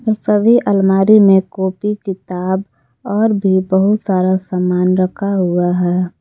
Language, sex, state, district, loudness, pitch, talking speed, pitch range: Hindi, female, Jharkhand, Palamu, -14 LUFS, 190 Hz, 125 wpm, 185-205 Hz